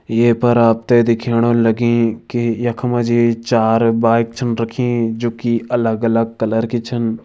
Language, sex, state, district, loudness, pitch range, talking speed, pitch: Kumaoni, male, Uttarakhand, Tehri Garhwal, -16 LUFS, 115-120 Hz, 155 wpm, 115 Hz